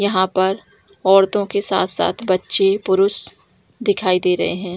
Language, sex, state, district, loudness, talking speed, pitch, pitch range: Hindi, female, Jharkhand, Jamtara, -17 LUFS, 140 wpm, 195 Hz, 185-205 Hz